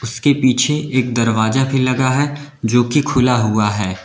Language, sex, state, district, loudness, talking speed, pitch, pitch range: Hindi, male, Uttar Pradesh, Lalitpur, -16 LUFS, 165 wpm, 130 Hz, 115-140 Hz